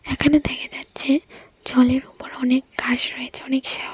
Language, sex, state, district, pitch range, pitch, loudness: Bengali, female, Tripura, West Tripura, 250-280 Hz, 265 Hz, -21 LUFS